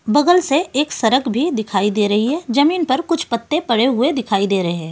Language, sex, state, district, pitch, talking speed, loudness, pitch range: Hindi, female, Delhi, New Delhi, 255 Hz, 230 wpm, -17 LUFS, 215-300 Hz